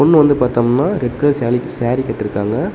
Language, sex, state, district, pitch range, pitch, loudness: Tamil, male, Tamil Nadu, Namakkal, 120-140 Hz, 125 Hz, -16 LUFS